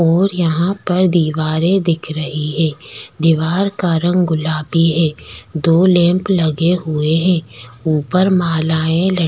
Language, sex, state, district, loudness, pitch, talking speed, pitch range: Hindi, female, Chhattisgarh, Bastar, -15 LUFS, 165 Hz, 135 wpm, 155-180 Hz